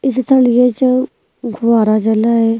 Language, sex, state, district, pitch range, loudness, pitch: Hindi, female, Himachal Pradesh, Shimla, 225-255 Hz, -13 LUFS, 240 Hz